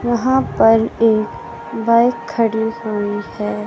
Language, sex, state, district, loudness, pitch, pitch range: Hindi, male, Madhya Pradesh, Katni, -17 LUFS, 225 Hz, 215-235 Hz